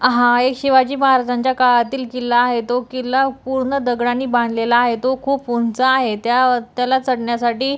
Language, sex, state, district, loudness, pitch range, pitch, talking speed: Marathi, female, Maharashtra, Dhule, -17 LUFS, 240-260 Hz, 250 Hz, 155 wpm